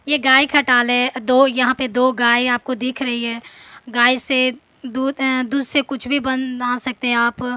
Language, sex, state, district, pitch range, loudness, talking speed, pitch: Hindi, female, Bihar, Patna, 245-265 Hz, -17 LUFS, 200 wpm, 255 Hz